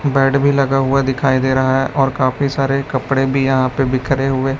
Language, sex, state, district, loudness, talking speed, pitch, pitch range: Hindi, male, Chhattisgarh, Raipur, -16 LUFS, 220 wpm, 135 Hz, 130-135 Hz